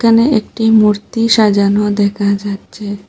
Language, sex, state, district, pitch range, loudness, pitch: Bengali, female, Assam, Hailakandi, 205-225 Hz, -12 LUFS, 210 Hz